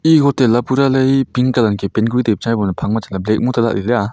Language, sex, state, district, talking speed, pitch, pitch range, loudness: Wancho, male, Arunachal Pradesh, Longding, 305 wpm, 115 Hz, 110-130 Hz, -15 LUFS